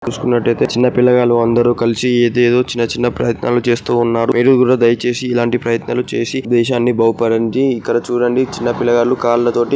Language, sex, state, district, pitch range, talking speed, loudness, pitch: Telugu, male, Andhra Pradesh, Guntur, 120-125 Hz, 140 wpm, -14 LUFS, 120 Hz